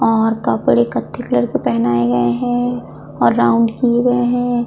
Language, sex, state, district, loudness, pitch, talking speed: Hindi, female, Chhattisgarh, Kabirdham, -16 LUFS, 225 Hz, 165 wpm